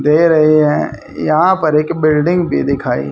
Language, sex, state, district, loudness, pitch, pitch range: Hindi, male, Haryana, Rohtak, -13 LUFS, 155 Hz, 150-165 Hz